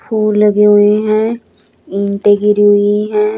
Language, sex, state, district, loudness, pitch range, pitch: Hindi, female, Chandigarh, Chandigarh, -11 LUFS, 205-215 Hz, 210 Hz